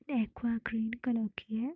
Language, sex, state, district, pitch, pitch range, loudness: Hindi, female, Bihar, Muzaffarpur, 230 Hz, 220-245 Hz, -34 LUFS